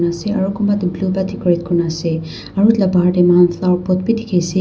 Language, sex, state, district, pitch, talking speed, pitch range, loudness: Nagamese, female, Nagaland, Dimapur, 180 Hz, 275 wpm, 175-195 Hz, -16 LUFS